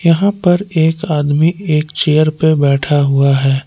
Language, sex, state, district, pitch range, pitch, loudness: Hindi, male, Jharkhand, Palamu, 145-170 Hz, 155 Hz, -13 LUFS